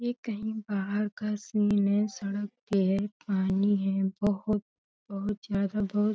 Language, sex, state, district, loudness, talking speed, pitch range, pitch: Hindi, female, Uttar Pradesh, Deoria, -29 LUFS, 145 wpm, 200-210 Hz, 205 Hz